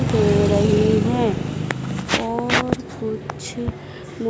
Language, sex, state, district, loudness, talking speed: Hindi, female, Madhya Pradesh, Dhar, -21 LUFS, 85 wpm